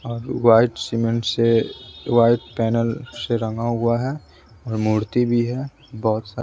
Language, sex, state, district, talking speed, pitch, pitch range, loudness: Hindi, male, Bihar, West Champaran, 140 wpm, 115 Hz, 115-120 Hz, -21 LUFS